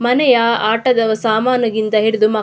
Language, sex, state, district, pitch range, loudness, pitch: Kannada, female, Karnataka, Mysore, 220-245 Hz, -14 LUFS, 225 Hz